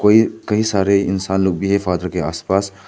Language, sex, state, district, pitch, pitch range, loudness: Hindi, male, Arunachal Pradesh, Papum Pare, 95 Hz, 95-100 Hz, -18 LUFS